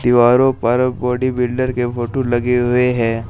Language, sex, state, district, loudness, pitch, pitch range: Hindi, male, Uttar Pradesh, Shamli, -16 LUFS, 125 Hz, 120-125 Hz